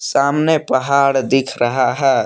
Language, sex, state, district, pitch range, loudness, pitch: Hindi, male, Jharkhand, Palamu, 130-140 Hz, -16 LUFS, 135 Hz